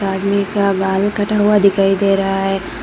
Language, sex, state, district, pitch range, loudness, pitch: Hindi, female, Assam, Hailakandi, 195-200 Hz, -15 LUFS, 195 Hz